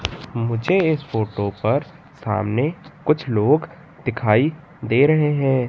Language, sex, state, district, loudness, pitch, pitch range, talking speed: Hindi, male, Madhya Pradesh, Katni, -20 LUFS, 140 Hz, 115-155 Hz, 115 wpm